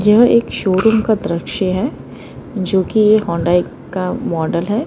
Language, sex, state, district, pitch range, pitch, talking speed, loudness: Hindi, female, Maharashtra, Mumbai Suburban, 180-220 Hz, 195 Hz, 160 wpm, -16 LUFS